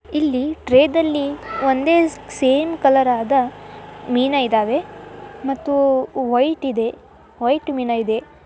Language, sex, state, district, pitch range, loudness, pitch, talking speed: Kannada, male, Karnataka, Dharwad, 250-300 Hz, -18 LUFS, 270 Hz, 105 wpm